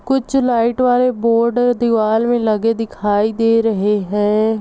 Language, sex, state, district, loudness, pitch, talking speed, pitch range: Hindi, female, Chhattisgarh, Rajnandgaon, -16 LUFS, 230 Hz, 145 wpm, 215-240 Hz